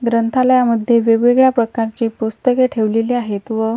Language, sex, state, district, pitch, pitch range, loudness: Marathi, female, Maharashtra, Washim, 230 Hz, 225-245 Hz, -15 LUFS